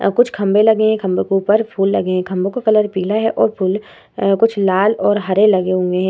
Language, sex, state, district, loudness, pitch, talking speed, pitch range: Hindi, female, Bihar, Vaishali, -15 LUFS, 200 Hz, 265 wpm, 190-215 Hz